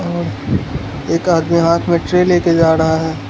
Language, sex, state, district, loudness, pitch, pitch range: Hindi, male, Gujarat, Valsad, -15 LUFS, 165 Hz, 160-170 Hz